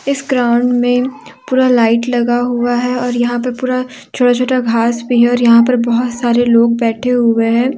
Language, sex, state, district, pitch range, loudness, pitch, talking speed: Hindi, female, Jharkhand, Deoghar, 235-250 Hz, -13 LUFS, 245 Hz, 200 wpm